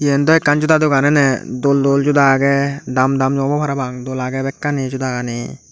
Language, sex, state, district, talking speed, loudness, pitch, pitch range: Chakma, male, Tripura, Dhalai, 200 wpm, -16 LUFS, 135 Hz, 130-145 Hz